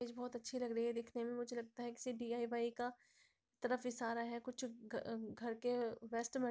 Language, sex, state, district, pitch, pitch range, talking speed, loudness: Hindi, female, Bihar, Begusarai, 240 Hz, 235-245 Hz, 220 wpm, -44 LUFS